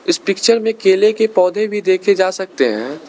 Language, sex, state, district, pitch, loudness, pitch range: Hindi, male, Arunachal Pradesh, Lower Dibang Valley, 200 Hz, -15 LUFS, 190-220 Hz